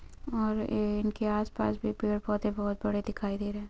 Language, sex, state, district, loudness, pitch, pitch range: Hindi, female, Chhattisgarh, Bilaspur, -32 LUFS, 210 Hz, 205-215 Hz